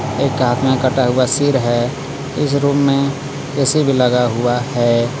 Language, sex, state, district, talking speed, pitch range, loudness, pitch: Hindi, male, Jharkhand, Garhwa, 175 wpm, 125-140 Hz, -16 LUFS, 135 Hz